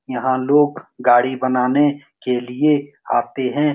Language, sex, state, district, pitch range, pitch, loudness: Hindi, male, Bihar, Saran, 125-145 Hz, 130 Hz, -18 LUFS